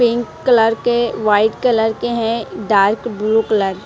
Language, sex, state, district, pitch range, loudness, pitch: Hindi, female, Punjab, Kapurthala, 210-235 Hz, -16 LUFS, 225 Hz